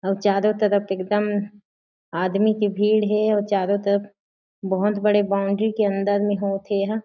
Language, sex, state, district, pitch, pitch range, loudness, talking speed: Chhattisgarhi, female, Chhattisgarh, Jashpur, 205 Hz, 200-210 Hz, -21 LUFS, 170 wpm